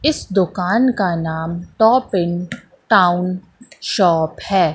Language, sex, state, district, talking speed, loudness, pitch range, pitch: Hindi, female, Madhya Pradesh, Katni, 100 wpm, -17 LUFS, 175-225 Hz, 185 Hz